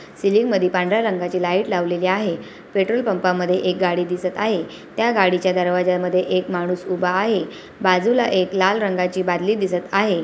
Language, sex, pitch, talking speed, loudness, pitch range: Awadhi, female, 185 Hz, 165 wpm, -20 LUFS, 180-200 Hz